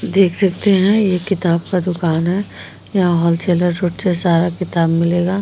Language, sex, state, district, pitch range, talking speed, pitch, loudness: Hindi, female, Uttar Pradesh, Jyotiba Phule Nagar, 170-190 Hz, 165 wpm, 180 Hz, -16 LUFS